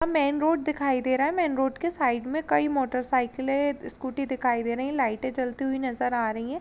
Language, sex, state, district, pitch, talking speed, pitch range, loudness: Hindi, female, Uttar Pradesh, Jalaun, 265 Hz, 225 wpm, 250-285 Hz, -27 LUFS